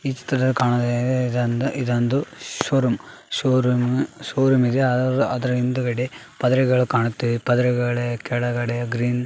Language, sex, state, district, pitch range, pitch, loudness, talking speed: Kannada, male, Karnataka, Raichur, 120-130 Hz, 125 Hz, -21 LUFS, 125 wpm